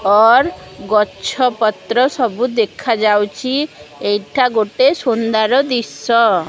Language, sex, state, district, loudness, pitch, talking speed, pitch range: Odia, female, Odisha, Khordha, -15 LUFS, 230 Hz, 90 wpm, 210-255 Hz